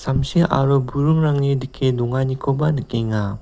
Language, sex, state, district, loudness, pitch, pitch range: Garo, male, Meghalaya, West Garo Hills, -19 LUFS, 135 Hz, 130-145 Hz